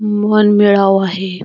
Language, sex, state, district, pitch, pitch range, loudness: Marathi, female, Karnataka, Belgaum, 200 Hz, 195-210 Hz, -12 LUFS